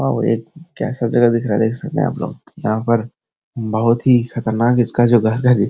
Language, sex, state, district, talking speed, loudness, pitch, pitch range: Hindi, male, Bihar, Araria, 230 wpm, -17 LUFS, 115 Hz, 110-120 Hz